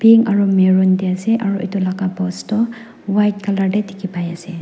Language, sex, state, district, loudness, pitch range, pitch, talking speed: Nagamese, female, Nagaland, Dimapur, -17 LUFS, 185-210 Hz, 195 Hz, 205 wpm